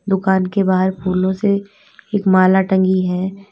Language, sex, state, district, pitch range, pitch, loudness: Hindi, female, Uttar Pradesh, Lalitpur, 185-200 Hz, 190 Hz, -16 LUFS